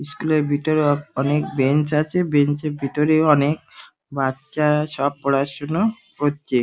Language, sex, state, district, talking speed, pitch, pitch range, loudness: Bengali, male, West Bengal, Dakshin Dinajpur, 145 wpm, 150 Hz, 140-155 Hz, -20 LUFS